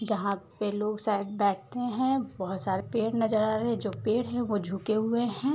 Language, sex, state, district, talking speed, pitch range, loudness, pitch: Hindi, female, Uttar Pradesh, Varanasi, 215 wpm, 200-235 Hz, -29 LUFS, 215 Hz